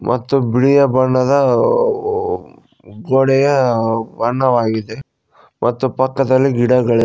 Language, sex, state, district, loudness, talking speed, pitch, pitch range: Kannada, male, Karnataka, Koppal, -15 LUFS, 75 wpm, 130 Hz, 120-140 Hz